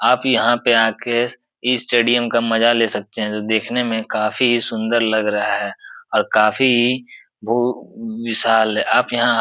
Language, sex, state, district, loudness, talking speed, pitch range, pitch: Hindi, male, Uttar Pradesh, Etah, -17 LUFS, 165 wpm, 110-120 Hz, 115 Hz